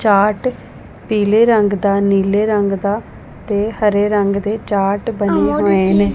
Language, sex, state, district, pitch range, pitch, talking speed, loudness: Punjabi, female, Punjab, Pathankot, 200-215 Hz, 205 Hz, 145 wpm, -15 LUFS